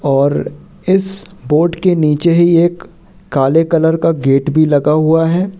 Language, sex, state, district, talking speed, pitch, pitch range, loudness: Hindi, male, Madhya Pradesh, Katni, 160 wpm, 165 Hz, 150-175 Hz, -13 LUFS